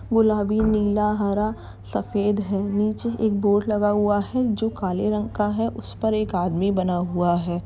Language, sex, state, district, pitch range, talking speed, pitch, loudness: Hindi, female, Uttar Pradesh, Jalaun, 190-215 Hz, 180 wpm, 205 Hz, -23 LUFS